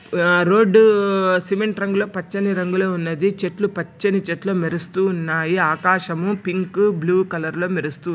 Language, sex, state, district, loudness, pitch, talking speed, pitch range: Telugu, male, Andhra Pradesh, Anantapur, -19 LUFS, 185 Hz, 130 wpm, 170-200 Hz